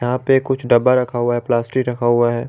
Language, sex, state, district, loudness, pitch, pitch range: Hindi, male, Jharkhand, Garhwa, -17 LUFS, 120 Hz, 120-125 Hz